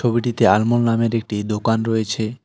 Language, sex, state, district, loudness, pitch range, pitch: Bengali, male, West Bengal, Alipurduar, -19 LUFS, 110-115 Hz, 115 Hz